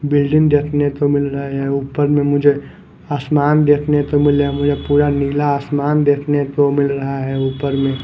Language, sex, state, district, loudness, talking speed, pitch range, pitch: Hindi, male, Maharashtra, Mumbai Suburban, -16 LUFS, 200 wpm, 140-145 Hz, 145 Hz